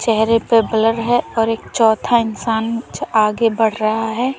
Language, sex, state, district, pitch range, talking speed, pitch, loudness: Hindi, female, Uttar Pradesh, Lalitpur, 220-230 Hz, 165 wpm, 225 Hz, -17 LUFS